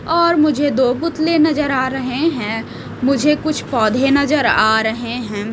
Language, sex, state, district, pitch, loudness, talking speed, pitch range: Hindi, female, Odisha, Malkangiri, 275 Hz, -16 LUFS, 165 wpm, 240-305 Hz